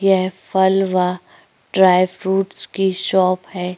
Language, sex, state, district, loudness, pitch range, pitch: Hindi, female, Uttar Pradesh, Jyotiba Phule Nagar, -18 LUFS, 185-190 Hz, 190 Hz